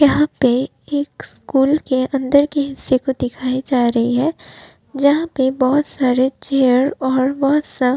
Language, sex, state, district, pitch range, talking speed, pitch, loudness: Hindi, female, Uttar Pradesh, Budaun, 255-285 Hz, 165 wpm, 265 Hz, -17 LUFS